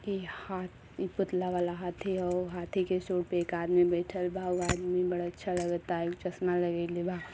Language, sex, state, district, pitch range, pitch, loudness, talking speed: Bhojpuri, female, Uttar Pradesh, Gorakhpur, 175-185 Hz, 180 Hz, -32 LUFS, 205 wpm